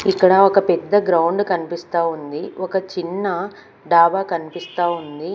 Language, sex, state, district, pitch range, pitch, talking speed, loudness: Telugu, female, Andhra Pradesh, Manyam, 170-190 Hz, 175 Hz, 125 wpm, -18 LUFS